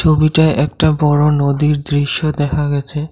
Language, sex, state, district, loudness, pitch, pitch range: Bengali, male, Assam, Kamrup Metropolitan, -14 LUFS, 150 Hz, 145-155 Hz